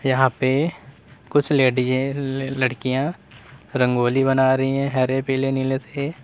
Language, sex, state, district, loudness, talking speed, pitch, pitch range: Hindi, male, Uttar Pradesh, Saharanpur, -21 LUFS, 125 wpm, 135 Hz, 130-140 Hz